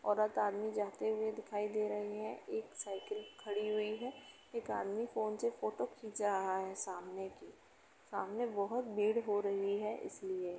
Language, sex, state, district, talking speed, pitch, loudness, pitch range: Hindi, female, Uttar Pradesh, Etah, 180 wpm, 210 Hz, -39 LUFS, 200-220 Hz